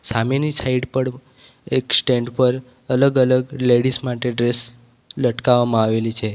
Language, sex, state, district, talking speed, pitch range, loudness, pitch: Gujarati, male, Gujarat, Valsad, 130 wpm, 120-130 Hz, -19 LUFS, 125 Hz